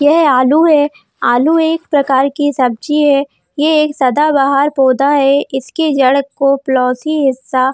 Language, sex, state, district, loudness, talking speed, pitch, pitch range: Hindi, female, Jharkhand, Jamtara, -12 LUFS, 155 wpm, 280 Hz, 265-300 Hz